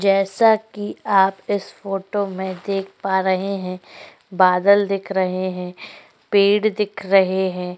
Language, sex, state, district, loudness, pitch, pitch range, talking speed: Hindi, female, Maharashtra, Chandrapur, -20 LUFS, 195 Hz, 185-200 Hz, 140 wpm